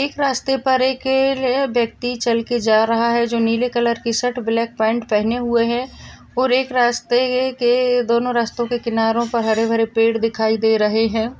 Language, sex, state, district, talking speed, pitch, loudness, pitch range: Hindi, female, Maharashtra, Solapur, 195 wpm, 235 Hz, -18 LUFS, 230-250 Hz